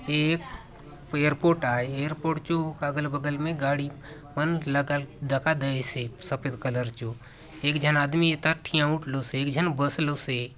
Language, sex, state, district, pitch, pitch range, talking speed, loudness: Halbi, male, Chhattisgarh, Bastar, 145 Hz, 135-155 Hz, 145 wpm, -27 LUFS